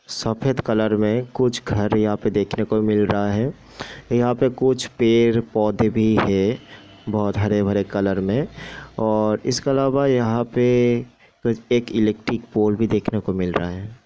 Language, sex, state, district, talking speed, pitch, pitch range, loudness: Hindi, male, Bihar, Sitamarhi, 155 wpm, 110 Hz, 105-120 Hz, -20 LUFS